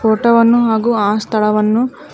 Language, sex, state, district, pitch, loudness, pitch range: Kannada, female, Karnataka, Koppal, 225 Hz, -13 LUFS, 215-235 Hz